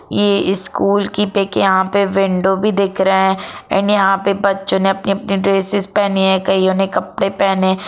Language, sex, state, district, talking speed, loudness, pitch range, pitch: Hindi, female, Jharkhand, Jamtara, 190 wpm, -15 LUFS, 190-200 Hz, 195 Hz